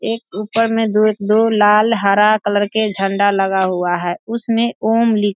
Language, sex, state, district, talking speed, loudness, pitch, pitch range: Hindi, female, Bihar, Saharsa, 190 wpm, -15 LUFS, 210 Hz, 200-225 Hz